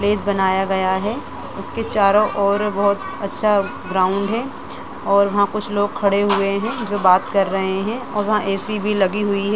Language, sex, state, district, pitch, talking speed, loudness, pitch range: Hindi, female, Jharkhand, Sahebganj, 200 Hz, 195 wpm, -19 LUFS, 195-210 Hz